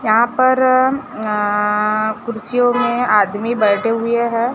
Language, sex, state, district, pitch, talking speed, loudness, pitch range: Hindi, female, Maharashtra, Gondia, 230 Hz, 120 wpm, -16 LUFS, 215-245 Hz